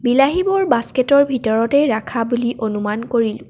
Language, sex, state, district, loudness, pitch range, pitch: Assamese, female, Assam, Kamrup Metropolitan, -17 LUFS, 225-275 Hz, 240 Hz